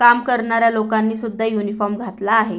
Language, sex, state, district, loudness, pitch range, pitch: Marathi, female, Maharashtra, Aurangabad, -18 LUFS, 215-230 Hz, 225 Hz